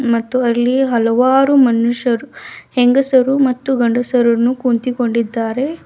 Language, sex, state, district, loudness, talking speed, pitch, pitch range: Kannada, female, Karnataka, Bidar, -14 LUFS, 80 wpm, 245 Hz, 235-260 Hz